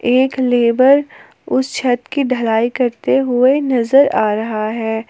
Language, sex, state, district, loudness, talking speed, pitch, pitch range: Hindi, female, Jharkhand, Palamu, -15 LUFS, 140 wpm, 250 Hz, 230-265 Hz